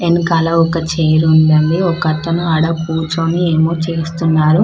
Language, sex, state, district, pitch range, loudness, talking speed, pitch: Telugu, female, Telangana, Karimnagar, 160-165 Hz, -14 LUFS, 140 wpm, 165 Hz